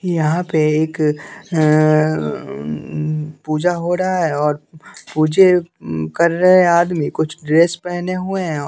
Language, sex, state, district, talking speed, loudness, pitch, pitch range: Hindi, male, Bihar, West Champaran, 130 wpm, -17 LUFS, 160 Hz, 155-175 Hz